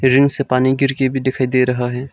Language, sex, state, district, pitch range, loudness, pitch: Hindi, male, Arunachal Pradesh, Lower Dibang Valley, 130-135 Hz, -16 LUFS, 130 Hz